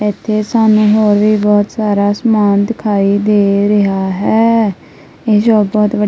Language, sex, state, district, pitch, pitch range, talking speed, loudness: Punjabi, female, Punjab, Kapurthala, 210 Hz, 205-215 Hz, 150 wpm, -12 LUFS